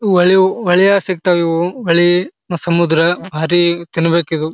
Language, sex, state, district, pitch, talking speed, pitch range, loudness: Kannada, male, Karnataka, Bijapur, 175 Hz, 145 wpm, 170-185 Hz, -14 LUFS